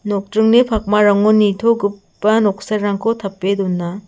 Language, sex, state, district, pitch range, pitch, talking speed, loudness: Garo, female, Meghalaya, South Garo Hills, 200-215 Hz, 205 Hz, 90 wpm, -16 LUFS